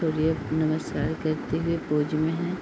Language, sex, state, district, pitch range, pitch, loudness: Hindi, female, Uttar Pradesh, Deoria, 155-160 Hz, 160 Hz, -27 LUFS